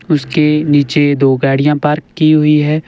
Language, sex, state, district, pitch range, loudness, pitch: Hindi, male, Himachal Pradesh, Shimla, 145-155 Hz, -12 LUFS, 150 Hz